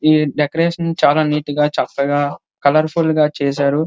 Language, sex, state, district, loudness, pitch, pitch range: Telugu, male, Andhra Pradesh, Srikakulam, -16 LUFS, 150 Hz, 145-155 Hz